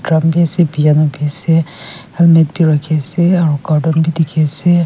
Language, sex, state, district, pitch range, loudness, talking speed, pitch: Nagamese, female, Nagaland, Kohima, 150-170 Hz, -13 LUFS, 175 wpm, 160 Hz